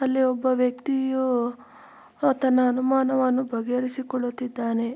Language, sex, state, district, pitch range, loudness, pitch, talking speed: Kannada, female, Karnataka, Mysore, 245-265 Hz, -24 LUFS, 255 Hz, 70 wpm